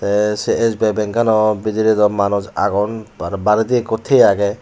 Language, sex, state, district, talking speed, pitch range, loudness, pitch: Chakma, male, Tripura, Unakoti, 195 wpm, 100-110 Hz, -16 LUFS, 105 Hz